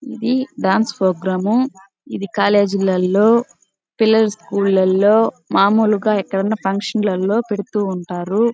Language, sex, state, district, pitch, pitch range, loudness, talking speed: Telugu, female, Andhra Pradesh, Chittoor, 205 Hz, 195-220 Hz, -17 LUFS, 110 wpm